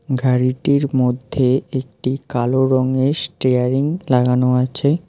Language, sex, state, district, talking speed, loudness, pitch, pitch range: Bengali, male, West Bengal, Alipurduar, 95 wpm, -18 LUFS, 130 Hz, 125-140 Hz